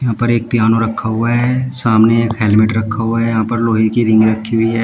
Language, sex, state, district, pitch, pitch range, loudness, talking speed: Hindi, male, Uttar Pradesh, Shamli, 115 Hz, 110-115 Hz, -14 LUFS, 260 wpm